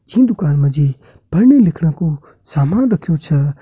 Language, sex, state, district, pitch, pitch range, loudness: Kumaoni, male, Uttarakhand, Tehri Garhwal, 155 Hz, 140-195 Hz, -15 LUFS